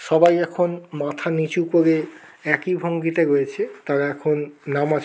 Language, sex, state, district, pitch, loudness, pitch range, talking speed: Bengali, male, West Bengal, Kolkata, 160 Hz, -21 LUFS, 145-175 Hz, 140 wpm